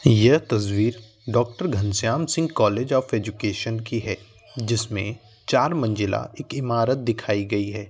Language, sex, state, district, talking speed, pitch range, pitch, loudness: Hindi, male, Uttar Pradesh, Varanasi, 135 wpm, 105-120 Hz, 115 Hz, -23 LUFS